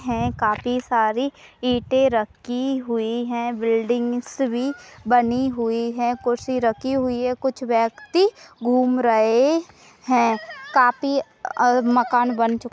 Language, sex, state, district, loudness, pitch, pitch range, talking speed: Hindi, female, Uttar Pradesh, Budaun, -21 LUFS, 245 Hz, 235-260 Hz, 125 wpm